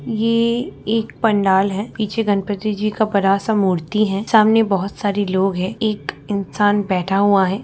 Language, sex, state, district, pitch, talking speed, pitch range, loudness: Hindi, female, Bihar, Lakhisarai, 205 Hz, 165 wpm, 195-215 Hz, -18 LUFS